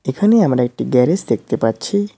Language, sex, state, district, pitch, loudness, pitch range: Bengali, male, West Bengal, Cooch Behar, 170 Hz, -16 LUFS, 125-205 Hz